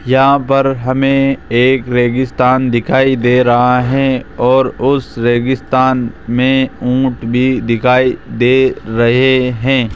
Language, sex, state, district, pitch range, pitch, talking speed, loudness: Hindi, male, Rajasthan, Jaipur, 120-130 Hz, 130 Hz, 115 wpm, -12 LUFS